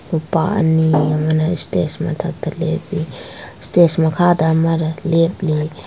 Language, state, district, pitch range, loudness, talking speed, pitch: Manipuri, Manipur, Imphal West, 160-170 Hz, -17 LUFS, 100 wpm, 160 Hz